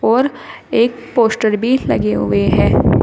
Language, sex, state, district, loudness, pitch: Hindi, female, Uttar Pradesh, Shamli, -15 LUFS, 230 Hz